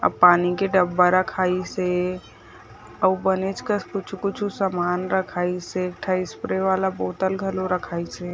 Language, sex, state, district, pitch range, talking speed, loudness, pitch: Chhattisgarhi, female, Chhattisgarh, Jashpur, 180-190 Hz, 145 wpm, -23 LUFS, 185 Hz